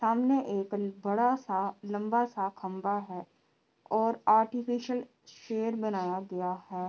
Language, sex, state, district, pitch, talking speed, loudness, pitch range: Hindi, female, Bihar, Kishanganj, 205 Hz, 140 wpm, -31 LUFS, 190-230 Hz